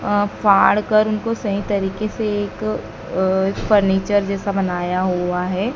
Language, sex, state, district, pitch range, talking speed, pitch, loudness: Hindi, female, Madhya Pradesh, Dhar, 190-210 Hz, 145 wpm, 200 Hz, -19 LUFS